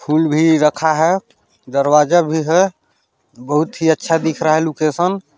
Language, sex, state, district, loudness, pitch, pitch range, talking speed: Chhattisgarhi, male, Chhattisgarh, Balrampur, -15 LUFS, 160 Hz, 150-165 Hz, 165 wpm